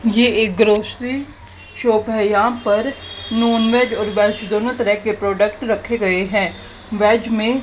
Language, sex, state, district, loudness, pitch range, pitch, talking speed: Hindi, female, Haryana, Jhajjar, -17 LUFS, 210-235 Hz, 220 Hz, 150 wpm